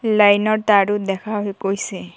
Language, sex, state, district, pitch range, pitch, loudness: Assamese, female, Assam, Kamrup Metropolitan, 195-215 Hz, 205 Hz, -18 LUFS